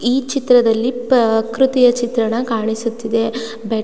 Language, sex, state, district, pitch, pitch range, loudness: Kannada, female, Karnataka, Mysore, 230 Hz, 225-245 Hz, -16 LUFS